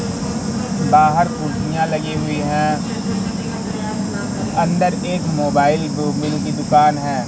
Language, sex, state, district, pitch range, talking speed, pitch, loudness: Hindi, male, Madhya Pradesh, Katni, 155-215 Hz, 105 wpm, 180 Hz, -18 LUFS